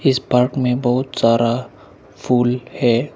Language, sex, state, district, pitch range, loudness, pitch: Hindi, male, Arunachal Pradesh, Lower Dibang Valley, 115-130 Hz, -18 LUFS, 125 Hz